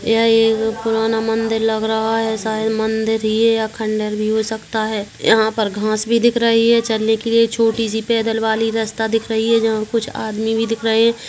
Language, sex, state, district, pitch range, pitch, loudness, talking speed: Hindi, female, Chhattisgarh, Kabirdham, 220-225 Hz, 225 Hz, -17 LUFS, 225 wpm